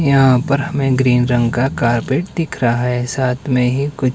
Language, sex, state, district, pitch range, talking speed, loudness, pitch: Hindi, male, Himachal Pradesh, Shimla, 125-140 Hz, 200 wpm, -16 LUFS, 130 Hz